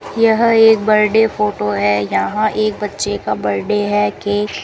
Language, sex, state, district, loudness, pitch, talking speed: Hindi, female, Rajasthan, Bikaner, -15 LUFS, 205 Hz, 170 wpm